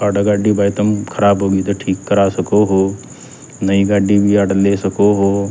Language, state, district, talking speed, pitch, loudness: Haryanvi, Haryana, Rohtak, 195 wpm, 100 Hz, -14 LUFS